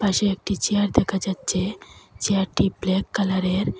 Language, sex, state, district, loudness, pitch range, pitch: Bengali, female, Assam, Hailakandi, -23 LUFS, 190-205 Hz, 195 Hz